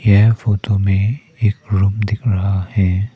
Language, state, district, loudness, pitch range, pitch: Hindi, Arunachal Pradesh, Papum Pare, -17 LUFS, 100-110 Hz, 105 Hz